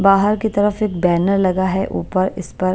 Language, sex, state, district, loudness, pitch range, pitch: Hindi, female, Punjab, Pathankot, -18 LUFS, 185-205 Hz, 190 Hz